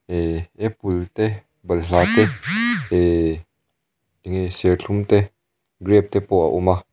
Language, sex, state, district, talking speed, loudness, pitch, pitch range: Mizo, male, Mizoram, Aizawl, 130 wpm, -20 LUFS, 95 Hz, 90-105 Hz